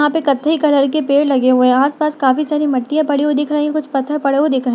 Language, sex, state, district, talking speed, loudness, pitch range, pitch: Hindi, female, Uttar Pradesh, Etah, 330 wpm, -15 LUFS, 270-300 Hz, 285 Hz